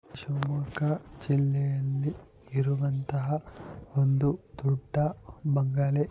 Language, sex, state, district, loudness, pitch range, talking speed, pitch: Kannada, male, Karnataka, Shimoga, -29 LUFS, 135-145 Hz, 60 wpm, 140 Hz